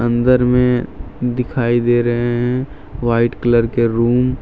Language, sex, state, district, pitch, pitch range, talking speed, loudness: Hindi, male, Jharkhand, Deoghar, 120 Hz, 120-125 Hz, 150 wpm, -16 LUFS